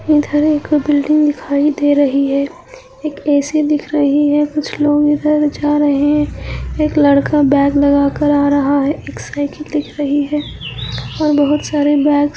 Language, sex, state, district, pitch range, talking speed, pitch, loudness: Hindi, female, Andhra Pradesh, Anantapur, 285-300 Hz, 165 wpm, 295 Hz, -14 LUFS